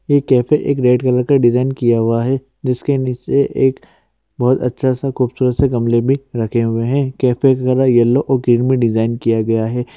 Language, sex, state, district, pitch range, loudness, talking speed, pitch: Hindi, male, Uttarakhand, Uttarkashi, 120-135 Hz, -15 LUFS, 185 wpm, 125 Hz